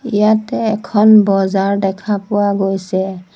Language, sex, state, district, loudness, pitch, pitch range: Assamese, female, Assam, Sonitpur, -14 LUFS, 200 Hz, 195-210 Hz